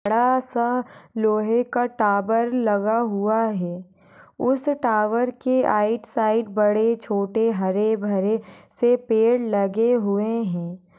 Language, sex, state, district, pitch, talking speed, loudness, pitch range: Kumaoni, female, Uttarakhand, Tehri Garhwal, 220 Hz, 115 wpm, -22 LUFS, 205-235 Hz